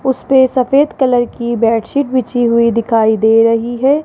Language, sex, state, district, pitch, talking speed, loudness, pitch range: Hindi, female, Rajasthan, Jaipur, 240 Hz, 165 wpm, -13 LUFS, 230-265 Hz